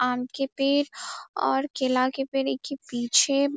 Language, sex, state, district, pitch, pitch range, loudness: Hindi, female, Bihar, Darbhanga, 270 Hz, 255-280 Hz, -25 LUFS